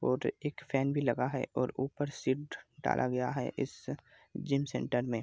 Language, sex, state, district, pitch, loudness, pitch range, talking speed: Hindi, male, Bihar, Araria, 130 Hz, -34 LUFS, 125-140 Hz, 185 wpm